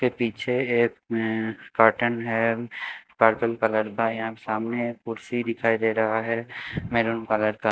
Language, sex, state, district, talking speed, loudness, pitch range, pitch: Hindi, male, Haryana, Jhajjar, 165 wpm, -25 LUFS, 110-120 Hz, 115 Hz